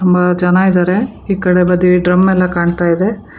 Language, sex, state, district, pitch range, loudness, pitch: Kannada, female, Karnataka, Bangalore, 180-190 Hz, -12 LUFS, 180 Hz